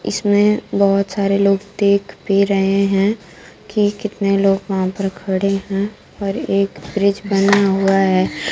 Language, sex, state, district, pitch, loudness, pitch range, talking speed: Hindi, female, Bihar, Kaimur, 195 Hz, -17 LUFS, 195-200 Hz, 150 wpm